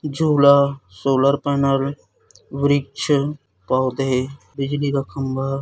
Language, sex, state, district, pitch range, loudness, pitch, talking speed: Hindi, male, Chhattisgarh, Raipur, 135-145 Hz, -20 LUFS, 140 Hz, 85 wpm